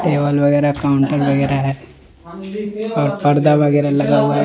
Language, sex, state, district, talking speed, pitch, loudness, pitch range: Hindi, male, Jharkhand, Deoghar, 150 wpm, 145 Hz, -16 LUFS, 140-150 Hz